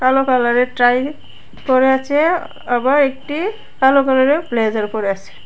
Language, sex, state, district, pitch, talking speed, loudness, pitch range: Bengali, female, Tripura, West Tripura, 265 Hz, 155 wpm, -16 LUFS, 245-285 Hz